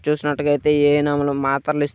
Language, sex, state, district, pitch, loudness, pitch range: Telugu, male, Andhra Pradesh, Krishna, 145 Hz, -19 LUFS, 145-150 Hz